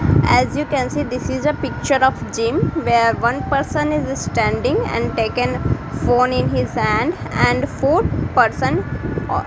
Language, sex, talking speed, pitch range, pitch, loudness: English, female, 165 wpm, 150-250 Hz, 230 Hz, -18 LUFS